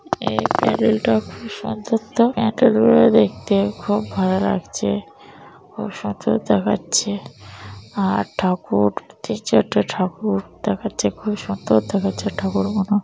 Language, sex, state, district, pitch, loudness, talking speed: Bengali, female, West Bengal, North 24 Parganas, 195 Hz, -20 LUFS, 110 wpm